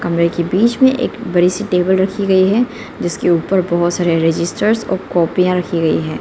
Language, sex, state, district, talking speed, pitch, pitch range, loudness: Hindi, female, Arunachal Pradesh, Lower Dibang Valley, 210 wpm, 180 Hz, 170-200 Hz, -15 LUFS